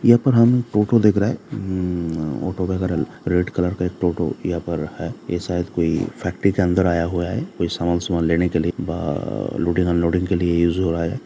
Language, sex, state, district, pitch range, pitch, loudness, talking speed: Hindi, male, Bihar, Samastipur, 85-95 Hz, 90 Hz, -21 LUFS, 225 wpm